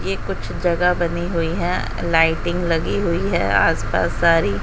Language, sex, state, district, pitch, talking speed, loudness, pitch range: Hindi, female, Haryana, Jhajjar, 170 Hz, 180 wpm, -19 LUFS, 165-175 Hz